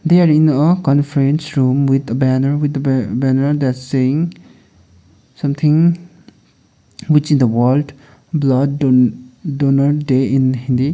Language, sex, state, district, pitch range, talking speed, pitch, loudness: English, male, Sikkim, Gangtok, 130-150 Hz, 125 wpm, 140 Hz, -15 LUFS